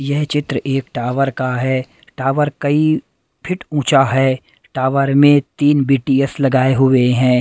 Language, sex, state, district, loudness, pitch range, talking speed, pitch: Hindi, male, Punjab, Pathankot, -16 LUFS, 130-145 Hz, 145 wpm, 135 Hz